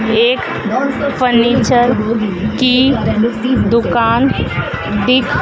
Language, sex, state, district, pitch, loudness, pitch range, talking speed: Hindi, female, Madhya Pradesh, Dhar, 240 Hz, -13 LUFS, 225-255 Hz, 55 wpm